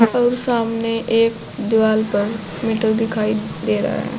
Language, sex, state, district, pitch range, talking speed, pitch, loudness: Hindi, female, Uttar Pradesh, Saharanpur, 215-230 Hz, 145 wpm, 225 Hz, -19 LUFS